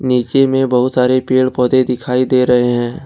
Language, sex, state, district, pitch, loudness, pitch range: Hindi, male, Jharkhand, Ranchi, 125 Hz, -14 LUFS, 125-130 Hz